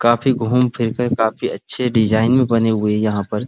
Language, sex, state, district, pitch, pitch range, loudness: Hindi, male, Uttar Pradesh, Muzaffarnagar, 115 Hz, 110-125 Hz, -17 LUFS